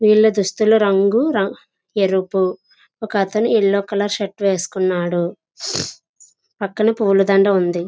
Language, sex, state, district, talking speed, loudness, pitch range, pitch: Telugu, female, Andhra Pradesh, Visakhapatnam, 115 wpm, -18 LUFS, 190-215 Hz, 200 Hz